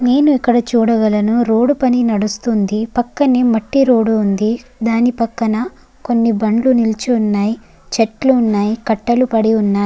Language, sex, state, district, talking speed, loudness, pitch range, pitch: Telugu, female, Andhra Pradesh, Guntur, 130 wpm, -15 LUFS, 220-245 Hz, 230 Hz